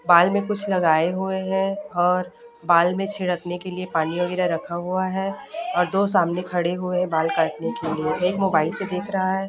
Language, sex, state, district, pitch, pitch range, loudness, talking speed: Hindi, female, Chhattisgarh, Raipur, 180 Hz, 170-195 Hz, -22 LUFS, 200 wpm